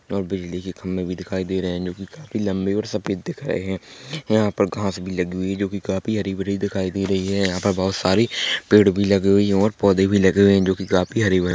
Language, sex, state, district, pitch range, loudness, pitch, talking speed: Hindi, male, Chhattisgarh, Korba, 95-100 Hz, -21 LUFS, 95 Hz, 270 wpm